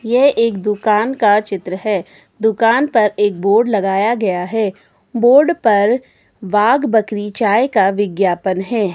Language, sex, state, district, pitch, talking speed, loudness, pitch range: Hindi, female, Himachal Pradesh, Shimla, 210 Hz, 140 wpm, -15 LUFS, 195-230 Hz